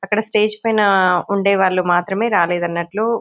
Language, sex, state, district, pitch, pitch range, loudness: Telugu, female, Telangana, Nalgonda, 195 Hz, 180-215 Hz, -17 LUFS